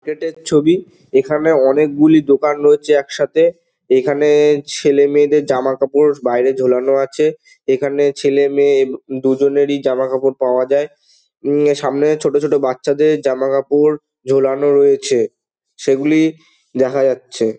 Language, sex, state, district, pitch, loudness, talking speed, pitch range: Bengali, male, West Bengal, Dakshin Dinajpur, 145 Hz, -15 LUFS, 115 wpm, 135-150 Hz